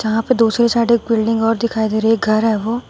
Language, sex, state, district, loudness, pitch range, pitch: Hindi, female, Uttar Pradesh, Shamli, -16 LUFS, 220-235 Hz, 225 Hz